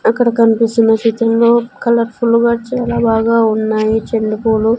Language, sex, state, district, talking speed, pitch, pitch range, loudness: Telugu, female, Andhra Pradesh, Sri Satya Sai, 110 wpm, 230 Hz, 225-235 Hz, -13 LUFS